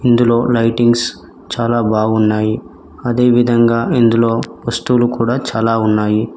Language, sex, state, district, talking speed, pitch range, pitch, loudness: Telugu, male, Telangana, Mahabubabad, 95 wpm, 110-120 Hz, 115 Hz, -14 LUFS